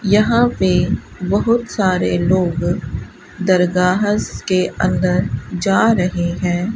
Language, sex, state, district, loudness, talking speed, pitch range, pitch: Hindi, female, Rajasthan, Bikaner, -17 LUFS, 100 wpm, 180-205 Hz, 185 Hz